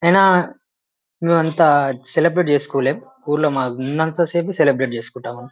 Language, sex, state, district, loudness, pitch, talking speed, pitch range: Telugu, male, Telangana, Nalgonda, -18 LUFS, 150 Hz, 100 wpm, 135-170 Hz